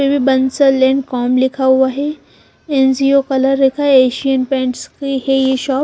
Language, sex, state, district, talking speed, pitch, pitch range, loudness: Hindi, female, Punjab, Fazilka, 145 wpm, 270 Hz, 260-275 Hz, -14 LUFS